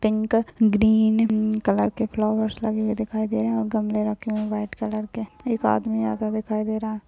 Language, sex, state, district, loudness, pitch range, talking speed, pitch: Hindi, female, Bihar, Lakhisarai, -23 LUFS, 215-220 Hz, 210 wpm, 215 Hz